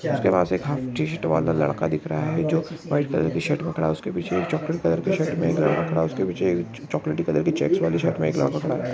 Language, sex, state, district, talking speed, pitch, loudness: Maithili, male, Bihar, Araria, 270 wpm, 85 Hz, -24 LUFS